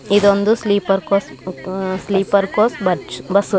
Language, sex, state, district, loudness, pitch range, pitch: Kannada, male, Karnataka, Raichur, -17 LUFS, 190-205 Hz, 200 Hz